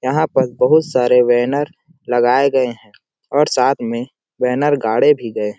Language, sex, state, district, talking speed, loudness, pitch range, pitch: Hindi, male, Chhattisgarh, Sarguja, 170 wpm, -16 LUFS, 120-140 Hz, 125 Hz